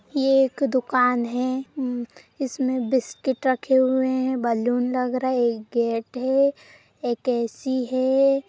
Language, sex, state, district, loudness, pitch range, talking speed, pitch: Hindi, female, Bihar, Jamui, -23 LUFS, 245-265 Hz, 140 wpm, 255 Hz